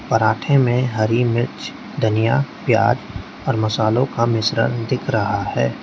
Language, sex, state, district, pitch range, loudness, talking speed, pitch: Hindi, male, Uttar Pradesh, Lalitpur, 110-125 Hz, -19 LUFS, 125 wpm, 115 Hz